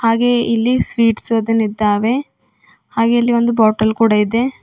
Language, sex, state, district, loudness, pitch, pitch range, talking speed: Kannada, female, Karnataka, Bidar, -15 LUFS, 230 Hz, 220-240 Hz, 140 wpm